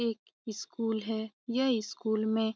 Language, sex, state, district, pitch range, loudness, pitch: Hindi, female, Bihar, Lakhisarai, 220-230 Hz, -33 LUFS, 220 Hz